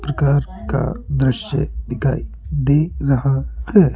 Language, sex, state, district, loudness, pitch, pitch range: Hindi, male, Rajasthan, Jaipur, -19 LUFS, 140 Hz, 135-145 Hz